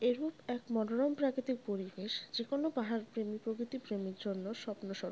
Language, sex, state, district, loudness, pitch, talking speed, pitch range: Bengali, female, West Bengal, North 24 Parganas, -38 LUFS, 230 Hz, 165 wpm, 205-255 Hz